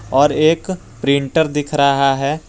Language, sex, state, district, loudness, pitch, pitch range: Hindi, male, Jharkhand, Garhwa, -16 LUFS, 145 Hz, 140-160 Hz